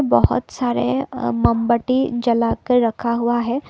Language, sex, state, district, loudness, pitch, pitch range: Hindi, female, Assam, Kamrup Metropolitan, -19 LUFS, 240 Hz, 235-250 Hz